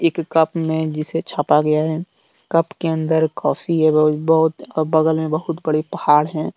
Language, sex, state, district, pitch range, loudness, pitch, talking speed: Hindi, male, Jharkhand, Deoghar, 155-165 Hz, -18 LUFS, 160 Hz, 190 wpm